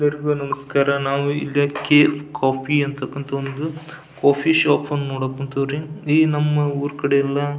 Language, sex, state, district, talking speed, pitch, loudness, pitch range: Kannada, male, Karnataka, Belgaum, 165 wpm, 145 Hz, -20 LUFS, 140-150 Hz